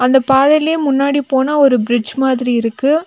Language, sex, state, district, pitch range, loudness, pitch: Tamil, female, Tamil Nadu, Nilgiris, 250-285 Hz, -13 LUFS, 270 Hz